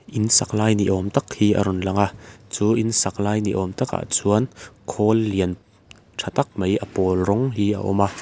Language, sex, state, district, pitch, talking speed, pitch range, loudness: Mizo, male, Mizoram, Aizawl, 105 Hz, 225 wpm, 95-110 Hz, -21 LUFS